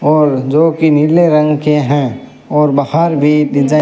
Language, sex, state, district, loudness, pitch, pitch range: Hindi, male, Rajasthan, Bikaner, -11 LUFS, 150 Hz, 145-155 Hz